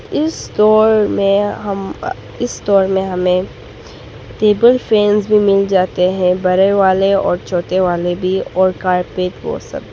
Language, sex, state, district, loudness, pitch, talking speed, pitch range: Hindi, female, Arunachal Pradesh, Papum Pare, -14 LUFS, 190 Hz, 155 wpm, 185-205 Hz